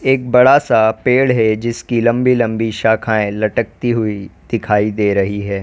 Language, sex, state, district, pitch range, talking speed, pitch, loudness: Hindi, female, Uttar Pradesh, Lalitpur, 105-120 Hz, 160 wpm, 110 Hz, -15 LUFS